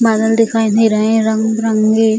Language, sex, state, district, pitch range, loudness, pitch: Hindi, female, Bihar, Jamui, 220-225 Hz, -13 LUFS, 220 Hz